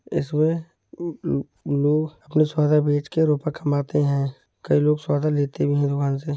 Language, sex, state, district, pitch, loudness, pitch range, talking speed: Hindi, male, Uttar Pradesh, Etah, 150 Hz, -22 LUFS, 145-155 Hz, 140 wpm